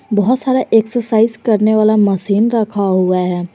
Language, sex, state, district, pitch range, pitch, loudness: Hindi, female, Jharkhand, Garhwa, 200-225 Hz, 215 Hz, -14 LUFS